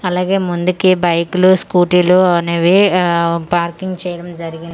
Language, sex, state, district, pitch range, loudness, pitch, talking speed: Telugu, female, Andhra Pradesh, Manyam, 170-185 Hz, -14 LUFS, 180 Hz, 125 wpm